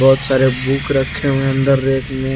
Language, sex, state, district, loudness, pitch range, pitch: Hindi, male, Jharkhand, Garhwa, -16 LUFS, 130-135 Hz, 135 Hz